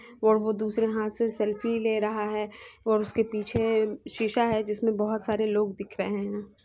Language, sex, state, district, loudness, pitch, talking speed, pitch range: Hindi, female, Bihar, Muzaffarpur, -28 LUFS, 215 Hz, 190 wpm, 210-225 Hz